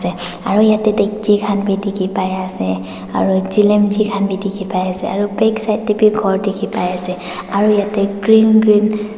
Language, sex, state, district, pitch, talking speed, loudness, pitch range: Nagamese, female, Nagaland, Dimapur, 200 Hz, 165 wpm, -15 LUFS, 185-215 Hz